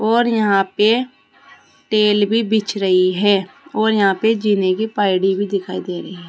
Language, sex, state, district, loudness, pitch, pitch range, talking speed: Hindi, female, Uttar Pradesh, Saharanpur, -17 LUFS, 205 Hz, 190-220 Hz, 180 wpm